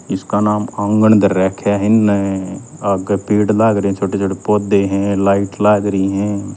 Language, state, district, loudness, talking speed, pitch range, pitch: Haryanvi, Haryana, Rohtak, -15 LUFS, 175 wpm, 100-105 Hz, 100 Hz